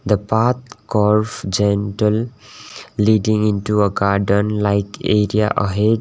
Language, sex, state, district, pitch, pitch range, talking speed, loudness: English, male, Sikkim, Gangtok, 105 Hz, 100-110 Hz, 110 wpm, -18 LUFS